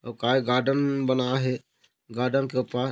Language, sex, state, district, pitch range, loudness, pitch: Chhattisgarhi, male, Chhattisgarh, Korba, 125-135 Hz, -25 LUFS, 130 Hz